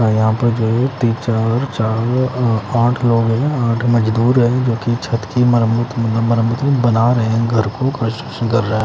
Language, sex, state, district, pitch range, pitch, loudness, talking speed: Hindi, male, Chandigarh, Chandigarh, 115-120 Hz, 115 Hz, -16 LUFS, 195 wpm